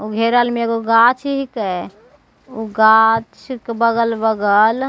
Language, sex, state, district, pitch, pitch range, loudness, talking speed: Maithili, female, Bihar, Begusarai, 230 Hz, 220-240 Hz, -15 LUFS, 135 wpm